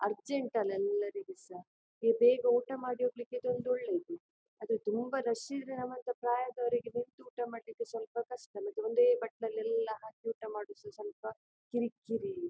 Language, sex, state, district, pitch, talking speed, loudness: Kannada, female, Karnataka, Dakshina Kannada, 250 Hz, 150 wpm, -35 LUFS